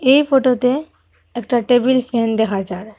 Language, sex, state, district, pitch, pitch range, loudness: Bengali, female, Assam, Hailakandi, 245 Hz, 225-260 Hz, -16 LUFS